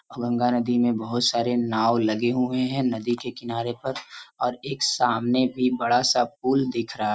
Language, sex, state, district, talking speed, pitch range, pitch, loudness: Hindi, male, Uttar Pradesh, Varanasi, 185 wpm, 120-125 Hz, 120 Hz, -24 LUFS